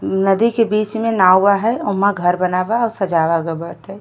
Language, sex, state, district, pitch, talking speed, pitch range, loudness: Bhojpuri, female, Uttar Pradesh, Gorakhpur, 195 Hz, 210 wpm, 180-225 Hz, -16 LUFS